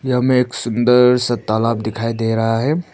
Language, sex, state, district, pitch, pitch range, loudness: Hindi, male, Arunachal Pradesh, Papum Pare, 120 Hz, 115-125 Hz, -16 LUFS